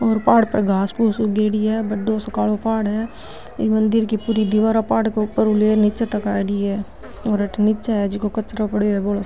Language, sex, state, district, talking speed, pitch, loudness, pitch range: Marwari, female, Rajasthan, Nagaur, 205 wpm, 215 Hz, -19 LUFS, 210-220 Hz